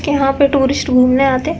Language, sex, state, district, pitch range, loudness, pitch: Hindi, female, Uttar Pradesh, Deoria, 265-285 Hz, -13 LUFS, 275 Hz